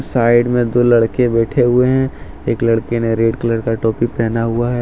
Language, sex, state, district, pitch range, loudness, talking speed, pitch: Hindi, male, Jharkhand, Deoghar, 115-120 Hz, -15 LUFS, 210 wpm, 115 Hz